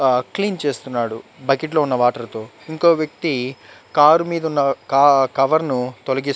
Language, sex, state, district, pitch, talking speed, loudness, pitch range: Telugu, male, Andhra Pradesh, Chittoor, 135 Hz, 160 wpm, -18 LUFS, 125-155 Hz